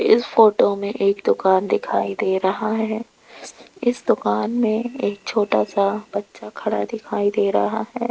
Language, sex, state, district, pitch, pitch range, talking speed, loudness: Hindi, female, Rajasthan, Jaipur, 205 Hz, 190-230 Hz, 155 wpm, -20 LUFS